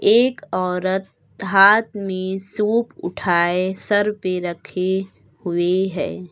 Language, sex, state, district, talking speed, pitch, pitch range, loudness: Hindi, female, Uttar Pradesh, Lucknow, 105 wpm, 190 Hz, 180-205 Hz, -19 LUFS